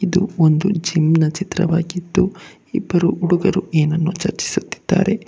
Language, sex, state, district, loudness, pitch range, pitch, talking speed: Kannada, male, Karnataka, Bangalore, -18 LUFS, 165-190 Hz, 180 Hz, 90 wpm